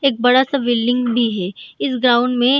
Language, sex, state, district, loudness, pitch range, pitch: Hindi, female, Bihar, Gaya, -16 LUFS, 240-260 Hz, 245 Hz